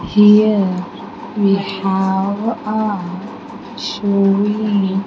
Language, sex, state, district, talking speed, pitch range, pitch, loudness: English, female, Andhra Pradesh, Sri Satya Sai, 70 wpm, 190-210 Hz, 200 Hz, -16 LUFS